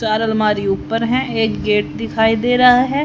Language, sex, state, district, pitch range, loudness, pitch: Hindi, female, Haryana, Charkhi Dadri, 215-245 Hz, -16 LUFS, 225 Hz